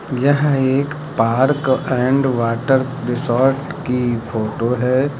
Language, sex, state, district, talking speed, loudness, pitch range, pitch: Hindi, male, Uttar Pradesh, Lucknow, 105 wpm, -18 LUFS, 120-140 Hz, 130 Hz